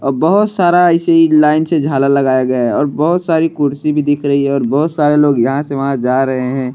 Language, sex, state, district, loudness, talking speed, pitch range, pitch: Bhojpuri, male, Uttar Pradesh, Deoria, -13 LUFS, 260 wpm, 135-160 Hz, 145 Hz